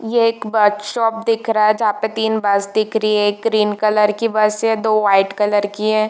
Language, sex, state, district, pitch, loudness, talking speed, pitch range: Hindi, female, Chhattisgarh, Bilaspur, 215 Hz, -16 LUFS, 245 wpm, 210-220 Hz